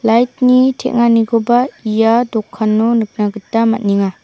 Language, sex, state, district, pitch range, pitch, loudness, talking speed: Garo, female, Meghalaya, South Garo Hills, 215-240 Hz, 230 Hz, -14 LUFS, 85 wpm